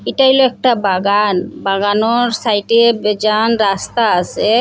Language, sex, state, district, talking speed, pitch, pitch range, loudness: Bengali, female, Assam, Hailakandi, 130 wpm, 220 Hz, 205-235 Hz, -14 LUFS